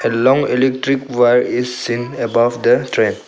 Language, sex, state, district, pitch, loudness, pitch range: English, male, Arunachal Pradesh, Longding, 125 Hz, -16 LUFS, 120-130 Hz